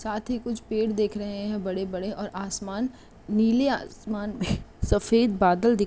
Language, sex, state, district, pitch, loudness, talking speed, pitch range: Hindi, female, Uttar Pradesh, Etah, 210 Hz, -27 LUFS, 165 wpm, 200-225 Hz